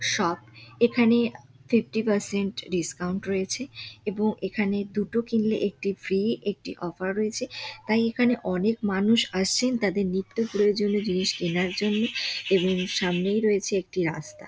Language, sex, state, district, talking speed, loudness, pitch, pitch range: Bengali, female, West Bengal, Dakshin Dinajpur, 130 wpm, -26 LUFS, 200 Hz, 185-220 Hz